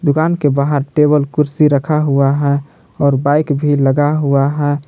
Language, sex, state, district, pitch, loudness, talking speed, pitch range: Hindi, male, Jharkhand, Palamu, 145 Hz, -14 LUFS, 170 wpm, 140-150 Hz